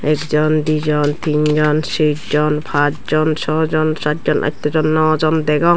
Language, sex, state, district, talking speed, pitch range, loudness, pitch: Chakma, female, Tripura, Dhalai, 105 wpm, 150-155 Hz, -16 LUFS, 155 Hz